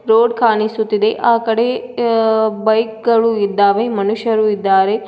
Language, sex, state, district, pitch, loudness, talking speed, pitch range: Kannada, female, Karnataka, Koppal, 220 Hz, -15 LUFS, 120 wpm, 210-230 Hz